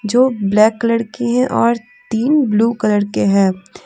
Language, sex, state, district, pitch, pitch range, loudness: Hindi, female, Jharkhand, Deoghar, 230 Hz, 210-245 Hz, -15 LUFS